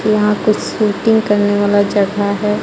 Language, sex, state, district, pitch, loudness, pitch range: Hindi, female, Jharkhand, Ranchi, 210 Hz, -14 LUFS, 205-215 Hz